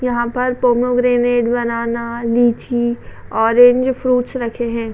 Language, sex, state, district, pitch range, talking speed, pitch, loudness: Hindi, female, Uttar Pradesh, Budaun, 235-245 Hz, 110 wpm, 240 Hz, -16 LUFS